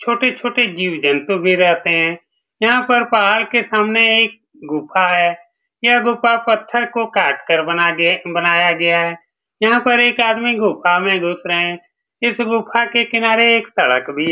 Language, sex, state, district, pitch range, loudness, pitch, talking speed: Hindi, male, Bihar, Saran, 170-235 Hz, -15 LUFS, 215 Hz, 175 wpm